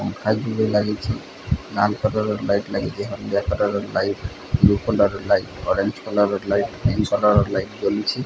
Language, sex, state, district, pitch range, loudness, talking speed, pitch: Odia, male, Odisha, Sambalpur, 100-110 Hz, -21 LUFS, 160 wpm, 105 Hz